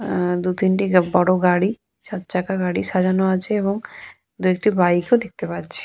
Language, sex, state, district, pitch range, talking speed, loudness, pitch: Bengali, female, West Bengal, Purulia, 180-195 Hz, 165 wpm, -20 LUFS, 185 Hz